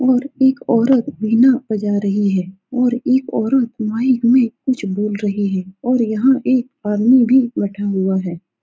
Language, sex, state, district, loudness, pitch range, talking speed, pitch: Hindi, female, Bihar, Saran, -17 LUFS, 205-255 Hz, 165 wpm, 235 Hz